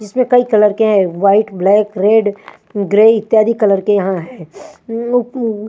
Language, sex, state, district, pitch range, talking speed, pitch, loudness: Hindi, female, Punjab, Fazilka, 200-225 Hz, 190 wpm, 210 Hz, -13 LUFS